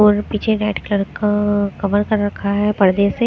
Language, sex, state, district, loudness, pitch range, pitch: Hindi, female, Haryana, Rohtak, -18 LUFS, 200-210 Hz, 205 Hz